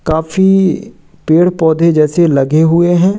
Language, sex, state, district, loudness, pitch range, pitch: Hindi, male, Madhya Pradesh, Katni, -11 LUFS, 160-180 Hz, 170 Hz